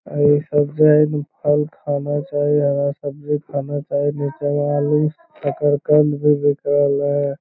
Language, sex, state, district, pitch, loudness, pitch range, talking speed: Magahi, male, Bihar, Lakhisarai, 145 Hz, -18 LUFS, 145-150 Hz, 160 wpm